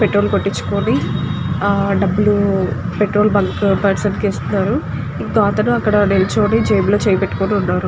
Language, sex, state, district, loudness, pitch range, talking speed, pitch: Telugu, female, Andhra Pradesh, Guntur, -16 LUFS, 195-210 Hz, 120 wpm, 200 Hz